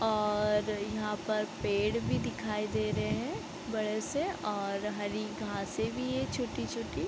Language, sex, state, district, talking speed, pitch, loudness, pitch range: Hindi, female, Bihar, East Champaran, 145 wpm, 210 Hz, -33 LUFS, 200-215 Hz